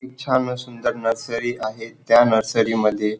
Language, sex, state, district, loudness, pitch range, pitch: Marathi, male, Maharashtra, Dhule, -20 LUFS, 110-125 Hz, 115 Hz